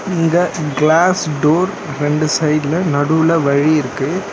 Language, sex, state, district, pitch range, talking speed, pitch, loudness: Tamil, male, Tamil Nadu, Chennai, 145-165 Hz, 110 wpm, 155 Hz, -15 LUFS